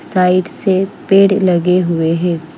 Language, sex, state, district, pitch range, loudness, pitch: Hindi, female, Chandigarh, Chandigarh, 170-190 Hz, -13 LUFS, 180 Hz